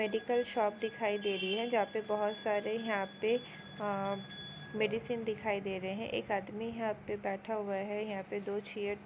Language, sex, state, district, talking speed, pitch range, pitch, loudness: Hindi, female, West Bengal, Kolkata, 200 wpm, 200-220 Hz, 210 Hz, -36 LUFS